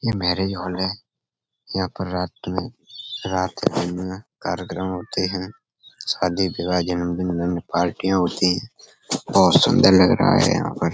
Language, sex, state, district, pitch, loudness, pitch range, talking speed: Hindi, male, Uttar Pradesh, Etah, 90 Hz, -21 LUFS, 90-95 Hz, 155 wpm